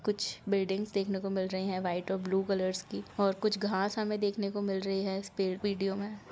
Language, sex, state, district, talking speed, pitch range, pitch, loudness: Hindi, female, Jharkhand, Sahebganj, 230 wpm, 190-205 Hz, 195 Hz, -33 LUFS